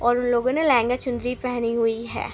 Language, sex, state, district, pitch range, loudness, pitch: Hindi, female, Uttar Pradesh, Gorakhpur, 235-250 Hz, -23 LUFS, 245 Hz